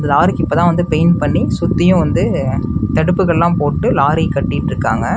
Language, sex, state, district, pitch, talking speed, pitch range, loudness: Tamil, male, Tamil Nadu, Namakkal, 165 Hz, 125 wpm, 140-175 Hz, -14 LUFS